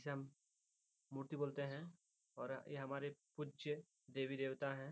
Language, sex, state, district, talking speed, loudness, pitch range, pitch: Hindi, male, Bihar, Gopalganj, 135 wpm, -48 LUFS, 135-150 Hz, 140 Hz